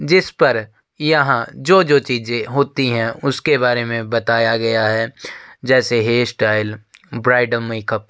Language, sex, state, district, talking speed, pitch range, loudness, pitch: Hindi, male, Uttar Pradesh, Jyotiba Phule Nagar, 135 wpm, 115-130 Hz, -17 LUFS, 120 Hz